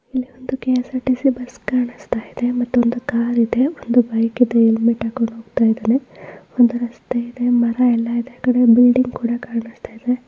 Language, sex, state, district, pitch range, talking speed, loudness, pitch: Kannada, female, Karnataka, Mysore, 235-250 Hz, 140 wpm, -18 LUFS, 245 Hz